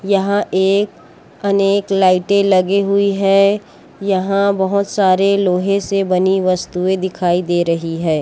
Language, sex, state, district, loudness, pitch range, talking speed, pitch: Chhattisgarhi, female, Chhattisgarh, Korba, -15 LUFS, 185-200 Hz, 130 wpm, 195 Hz